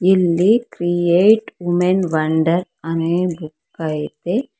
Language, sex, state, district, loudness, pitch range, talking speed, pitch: Kannada, female, Karnataka, Bangalore, -18 LUFS, 165-185 Hz, 90 wpm, 175 Hz